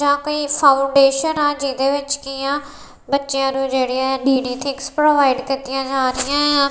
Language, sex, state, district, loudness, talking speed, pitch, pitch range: Punjabi, female, Punjab, Kapurthala, -18 LUFS, 170 wpm, 275 Hz, 270-285 Hz